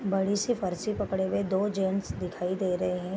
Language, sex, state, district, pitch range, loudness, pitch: Hindi, female, Bihar, Gopalganj, 180-200 Hz, -29 LUFS, 190 Hz